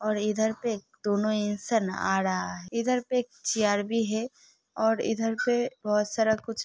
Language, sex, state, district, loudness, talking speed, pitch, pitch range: Hindi, female, Uttar Pradesh, Hamirpur, -28 LUFS, 180 wpm, 220 Hz, 210-230 Hz